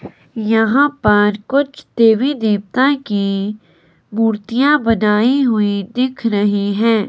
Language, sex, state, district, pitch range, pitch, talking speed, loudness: Hindi, female, Himachal Pradesh, Shimla, 205-255 Hz, 220 Hz, 100 wpm, -15 LUFS